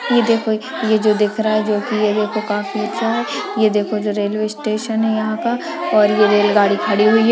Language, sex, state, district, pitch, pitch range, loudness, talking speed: Hindi, female, Bihar, Madhepura, 215 Hz, 210-220 Hz, -17 LUFS, 230 wpm